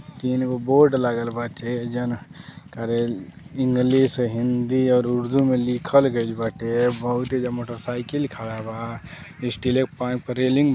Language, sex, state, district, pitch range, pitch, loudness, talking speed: Bhojpuri, male, Uttar Pradesh, Deoria, 120-130 Hz, 125 Hz, -23 LUFS, 135 wpm